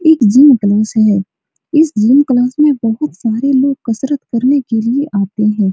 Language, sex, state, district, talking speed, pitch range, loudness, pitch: Hindi, female, Bihar, Supaul, 190 wpm, 215-280 Hz, -12 LUFS, 245 Hz